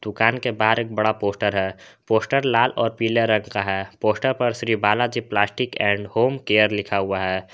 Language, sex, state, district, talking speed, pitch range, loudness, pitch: Hindi, male, Jharkhand, Garhwa, 200 wpm, 100-115 Hz, -21 LUFS, 110 Hz